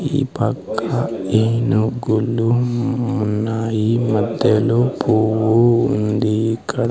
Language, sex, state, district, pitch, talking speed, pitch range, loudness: Telugu, male, Andhra Pradesh, Sri Satya Sai, 115 Hz, 70 wpm, 110-120 Hz, -18 LUFS